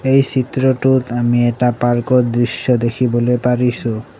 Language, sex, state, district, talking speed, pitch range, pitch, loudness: Assamese, male, Assam, Sonitpur, 115 wpm, 120-130 Hz, 125 Hz, -16 LUFS